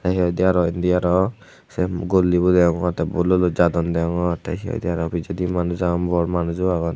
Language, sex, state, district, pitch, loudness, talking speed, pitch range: Chakma, male, Tripura, Unakoti, 90 Hz, -20 LUFS, 225 wpm, 85-90 Hz